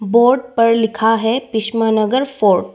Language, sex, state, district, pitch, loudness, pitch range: Hindi, female, Arunachal Pradesh, Lower Dibang Valley, 225 Hz, -15 LUFS, 220-240 Hz